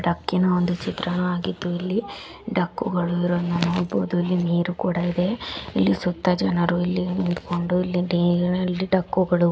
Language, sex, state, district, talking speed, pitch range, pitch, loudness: Kannada, female, Karnataka, Gulbarga, 125 wpm, 175-180 Hz, 180 Hz, -23 LUFS